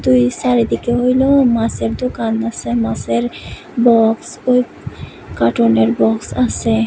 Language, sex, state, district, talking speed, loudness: Bengali, female, Tripura, West Tripura, 95 wpm, -15 LUFS